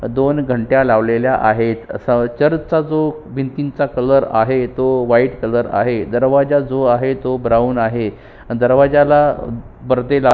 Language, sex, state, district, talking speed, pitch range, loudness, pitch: Marathi, male, Maharashtra, Sindhudurg, 150 wpm, 120-140 Hz, -15 LUFS, 130 Hz